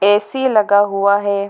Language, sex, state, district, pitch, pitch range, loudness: Hindi, female, Bihar, Gopalganj, 205 Hz, 200-210 Hz, -15 LUFS